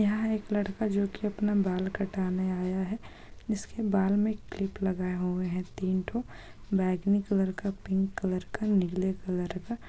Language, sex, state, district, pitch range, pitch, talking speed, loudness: Hindi, female, Bihar, Jahanabad, 185-210 Hz, 195 Hz, 170 wpm, -30 LUFS